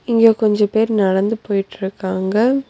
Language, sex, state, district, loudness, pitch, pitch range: Tamil, female, Tamil Nadu, Nilgiris, -17 LUFS, 210 Hz, 195-225 Hz